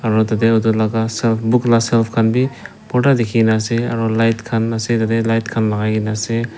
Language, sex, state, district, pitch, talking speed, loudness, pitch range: Nagamese, male, Nagaland, Dimapur, 115 Hz, 165 wpm, -16 LUFS, 110-115 Hz